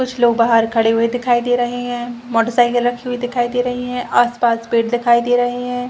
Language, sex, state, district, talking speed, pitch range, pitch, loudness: Hindi, female, Chhattisgarh, Rajnandgaon, 225 wpm, 235-245 Hz, 245 Hz, -17 LUFS